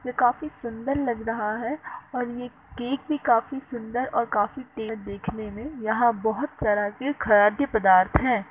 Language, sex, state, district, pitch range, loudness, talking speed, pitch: Hindi, female, Uttar Pradesh, Etah, 220-265 Hz, -25 LUFS, 160 wpm, 240 Hz